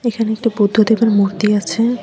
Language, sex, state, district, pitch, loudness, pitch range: Bengali, female, West Bengal, Alipurduar, 220 Hz, -15 LUFS, 210-230 Hz